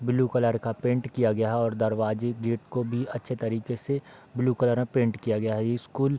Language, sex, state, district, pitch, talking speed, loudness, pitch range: Hindi, male, Bihar, Darbhanga, 120 Hz, 230 wpm, -27 LUFS, 115-125 Hz